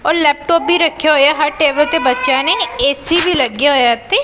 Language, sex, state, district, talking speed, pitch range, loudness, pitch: Punjabi, female, Punjab, Pathankot, 240 wpm, 265-330 Hz, -13 LUFS, 300 Hz